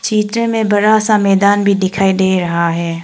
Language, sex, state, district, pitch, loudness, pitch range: Hindi, female, Arunachal Pradesh, Longding, 200 Hz, -13 LUFS, 185-215 Hz